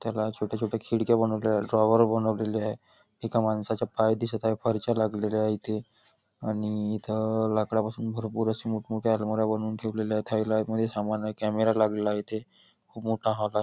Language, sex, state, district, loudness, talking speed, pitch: Marathi, male, Maharashtra, Nagpur, -28 LUFS, 165 wpm, 110 Hz